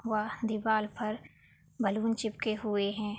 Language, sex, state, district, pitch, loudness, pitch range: Hindi, female, Uttar Pradesh, Budaun, 215 Hz, -32 LUFS, 200-220 Hz